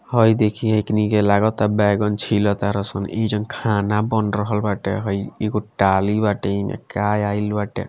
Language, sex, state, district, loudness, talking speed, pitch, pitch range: Bhojpuri, male, Bihar, Gopalganj, -20 LUFS, 185 wpm, 105 Hz, 100-110 Hz